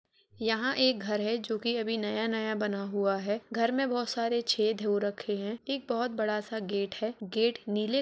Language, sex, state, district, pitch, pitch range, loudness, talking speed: Hindi, female, Uttar Pradesh, Jalaun, 220 Hz, 210-235 Hz, -31 LUFS, 225 wpm